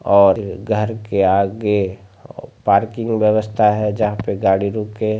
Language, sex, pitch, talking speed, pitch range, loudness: Maithili, male, 105 Hz, 150 wpm, 100-110 Hz, -17 LUFS